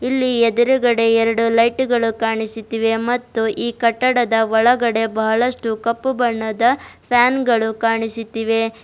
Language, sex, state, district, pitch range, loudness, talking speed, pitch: Kannada, female, Karnataka, Bidar, 225-245 Hz, -17 LUFS, 110 wpm, 230 Hz